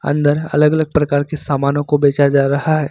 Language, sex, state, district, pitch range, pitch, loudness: Hindi, male, Uttar Pradesh, Lucknow, 140-150 Hz, 145 Hz, -15 LUFS